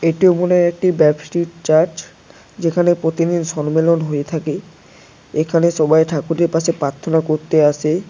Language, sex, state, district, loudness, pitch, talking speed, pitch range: Bengali, female, West Bengal, Paschim Medinipur, -16 LUFS, 160 Hz, 135 wpm, 155-170 Hz